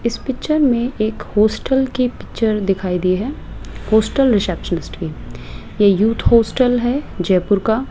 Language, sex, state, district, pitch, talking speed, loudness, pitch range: Hindi, female, Rajasthan, Jaipur, 220 Hz, 150 wpm, -17 LUFS, 195-250 Hz